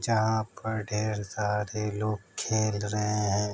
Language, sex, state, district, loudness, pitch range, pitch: Hindi, male, Uttar Pradesh, Varanasi, -29 LUFS, 105-110 Hz, 105 Hz